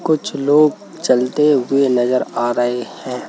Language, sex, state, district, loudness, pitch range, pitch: Hindi, male, Madhya Pradesh, Bhopal, -17 LUFS, 125-150 Hz, 130 Hz